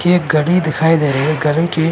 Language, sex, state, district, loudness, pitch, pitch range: Hindi, male, Uttar Pradesh, Varanasi, -14 LUFS, 160 Hz, 150-165 Hz